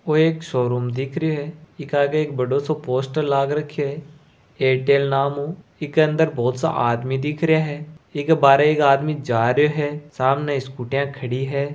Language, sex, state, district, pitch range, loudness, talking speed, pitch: Hindi, male, Rajasthan, Nagaur, 135-155 Hz, -20 LUFS, 190 wpm, 145 Hz